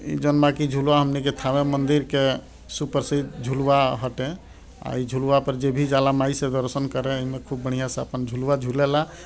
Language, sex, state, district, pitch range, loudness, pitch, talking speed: Bhojpuri, male, Bihar, Gopalganj, 130-140 Hz, -23 LUFS, 140 Hz, 220 wpm